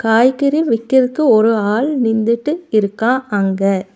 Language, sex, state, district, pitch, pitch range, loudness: Tamil, female, Tamil Nadu, Nilgiris, 230 Hz, 215-265 Hz, -15 LUFS